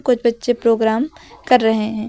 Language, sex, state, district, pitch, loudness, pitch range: Hindi, female, Uttar Pradesh, Lucknow, 235 Hz, -17 LUFS, 225-250 Hz